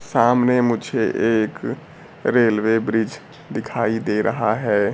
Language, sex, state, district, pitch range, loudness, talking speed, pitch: Hindi, male, Bihar, Kaimur, 110-120 Hz, -20 LUFS, 110 wpm, 115 Hz